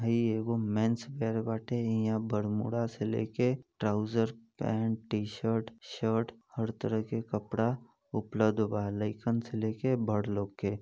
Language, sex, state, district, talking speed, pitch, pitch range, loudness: Bhojpuri, male, Uttar Pradesh, Deoria, 145 wpm, 110 Hz, 110-115 Hz, -33 LUFS